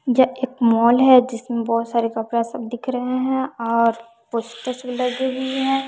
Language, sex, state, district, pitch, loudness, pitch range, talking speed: Hindi, female, Bihar, West Champaran, 245 Hz, -20 LUFS, 230-260 Hz, 185 wpm